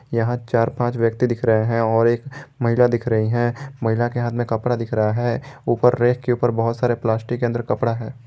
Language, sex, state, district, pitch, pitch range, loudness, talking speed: Hindi, male, Jharkhand, Garhwa, 120 Hz, 115-120 Hz, -20 LUFS, 230 wpm